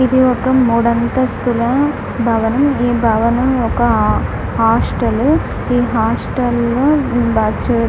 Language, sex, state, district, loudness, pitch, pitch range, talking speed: Telugu, female, Andhra Pradesh, Guntur, -15 LUFS, 245 Hz, 235-260 Hz, 105 wpm